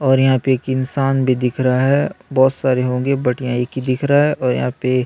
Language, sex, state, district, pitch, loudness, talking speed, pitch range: Hindi, male, Chhattisgarh, Sukma, 130 Hz, -17 LUFS, 260 wpm, 125-135 Hz